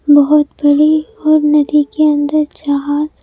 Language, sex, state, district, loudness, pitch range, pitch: Hindi, female, Madhya Pradesh, Bhopal, -12 LUFS, 290-305 Hz, 295 Hz